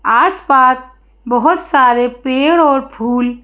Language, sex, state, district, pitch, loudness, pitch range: Hindi, female, Madhya Pradesh, Bhopal, 260 Hz, -12 LUFS, 245-290 Hz